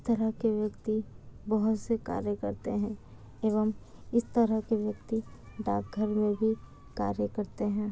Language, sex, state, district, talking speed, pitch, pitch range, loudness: Hindi, female, Bihar, Kishanganj, 150 wpm, 215 Hz, 210-220 Hz, -31 LUFS